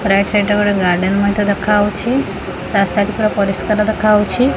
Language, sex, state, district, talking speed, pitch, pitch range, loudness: Odia, female, Odisha, Khordha, 145 wpm, 205 Hz, 195-215 Hz, -15 LUFS